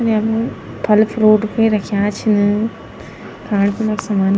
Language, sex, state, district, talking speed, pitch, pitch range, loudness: Garhwali, female, Uttarakhand, Tehri Garhwal, 125 wpm, 215 Hz, 205-220 Hz, -16 LUFS